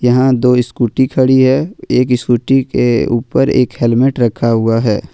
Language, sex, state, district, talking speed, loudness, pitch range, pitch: Hindi, male, Jharkhand, Ranchi, 165 wpm, -13 LUFS, 120-130 Hz, 125 Hz